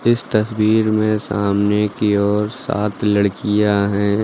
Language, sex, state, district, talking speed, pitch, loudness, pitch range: Hindi, male, Uttar Pradesh, Lucknow, 125 wpm, 105 Hz, -17 LUFS, 100-110 Hz